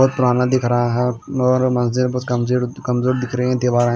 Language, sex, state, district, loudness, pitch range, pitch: Hindi, male, Himachal Pradesh, Shimla, -18 LUFS, 120-125 Hz, 125 Hz